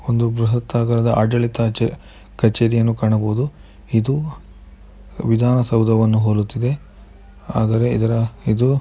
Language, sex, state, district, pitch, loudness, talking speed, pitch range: Kannada, male, Karnataka, Mysore, 115 Hz, -18 LUFS, 100 wpm, 110-120 Hz